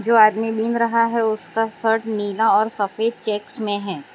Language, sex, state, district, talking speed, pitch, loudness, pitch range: Hindi, female, Gujarat, Valsad, 190 wpm, 220 Hz, -20 LUFS, 210-230 Hz